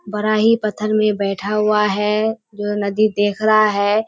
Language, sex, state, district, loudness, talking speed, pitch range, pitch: Hindi, female, Bihar, Kishanganj, -17 LUFS, 175 wpm, 205-215 Hz, 210 Hz